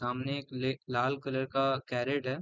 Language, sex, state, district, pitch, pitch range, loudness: Hindi, male, Uttar Pradesh, Varanasi, 130 Hz, 130-135 Hz, -33 LUFS